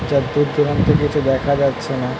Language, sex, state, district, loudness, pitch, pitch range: Bengali, male, West Bengal, North 24 Parganas, -18 LUFS, 140 Hz, 135-145 Hz